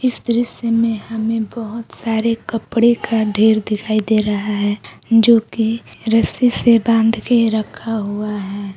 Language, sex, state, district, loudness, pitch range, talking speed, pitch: Hindi, female, Bihar, Purnia, -17 LUFS, 215-230 Hz, 135 wpm, 225 Hz